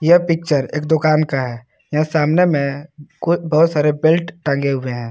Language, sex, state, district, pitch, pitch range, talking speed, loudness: Hindi, male, Jharkhand, Palamu, 155 Hz, 140-165 Hz, 190 wpm, -17 LUFS